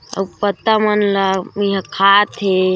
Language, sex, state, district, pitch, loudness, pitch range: Chhattisgarhi, female, Chhattisgarh, Korba, 195 Hz, -16 LUFS, 190-205 Hz